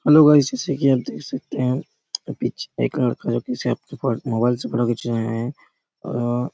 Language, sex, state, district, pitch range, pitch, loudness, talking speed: Hindi, male, Chhattisgarh, Raigarh, 120-140 Hz, 125 Hz, -22 LUFS, 185 wpm